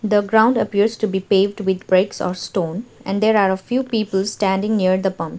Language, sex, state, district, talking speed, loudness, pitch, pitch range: English, female, Sikkim, Gangtok, 225 wpm, -19 LUFS, 200 Hz, 190-215 Hz